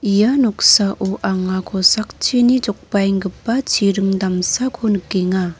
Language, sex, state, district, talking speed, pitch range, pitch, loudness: Garo, female, Meghalaya, North Garo Hills, 85 wpm, 190-230 Hz, 200 Hz, -16 LUFS